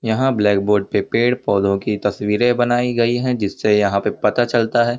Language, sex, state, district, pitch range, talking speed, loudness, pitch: Hindi, male, Uttar Pradesh, Varanasi, 105-120 Hz, 205 wpm, -18 LUFS, 110 Hz